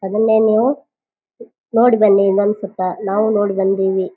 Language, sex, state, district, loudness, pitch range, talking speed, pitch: Kannada, female, Karnataka, Bijapur, -15 LUFS, 195-220 Hz, 115 wpm, 205 Hz